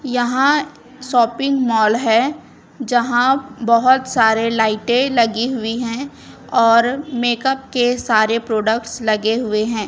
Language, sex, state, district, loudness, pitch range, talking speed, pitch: Hindi, female, Chhattisgarh, Raipur, -17 LUFS, 225-260 Hz, 115 wpm, 240 Hz